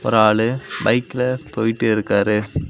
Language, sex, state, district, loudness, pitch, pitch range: Tamil, male, Tamil Nadu, Kanyakumari, -19 LUFS, 115 Hz, 105-125 Hz